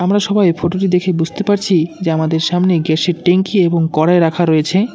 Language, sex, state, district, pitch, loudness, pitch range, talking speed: Bengali, male, West Bengal, Cooch Behar, 175 Hz, -14 LUFS, 165-185 Hz, 180 wpm